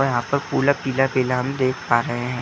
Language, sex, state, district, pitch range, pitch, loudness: Hindi, male, Uttar Pradesh, Etah, 120-135 Hz, 130 Hz, -21 LUFS